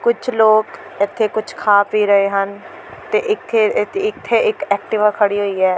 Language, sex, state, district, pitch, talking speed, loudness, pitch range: Punjabi, female, Delhi, New Delhi, 215 Hz, 175 wpm, -16 LUFS, 200-270 Hz